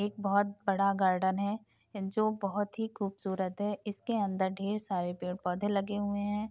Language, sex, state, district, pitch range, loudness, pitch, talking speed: Hindi, female, Uttar Pradesh, Etah, 195-205 Hz, -33 LUFS, 200 Hz, 175 wpm